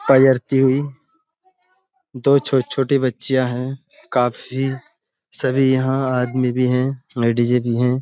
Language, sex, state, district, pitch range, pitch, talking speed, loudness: Hindi, male, Uttar Pradesh, Budaun, 125-135 Hz, 130 Hz, 95 wpm, -19 LUFS